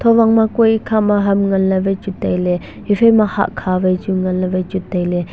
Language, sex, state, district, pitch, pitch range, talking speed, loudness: Wancho, male, Arunachal Pradesh, Longding, 195 Hz, 185-215 Hz, 170 wpm, -16 LUFS